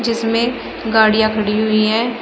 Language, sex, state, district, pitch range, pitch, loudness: Hindi, female, Uttar Pradesh, Shamli, 215-230 Hz, 225 Hz, -16 LUFS